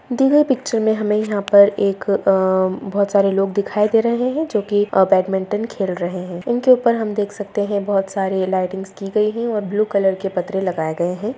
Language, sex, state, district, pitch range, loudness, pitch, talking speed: Hindi, female, Bihar, Gaya, 190-215 Hz, -18 LUFS, 200 Hz, 225 wpm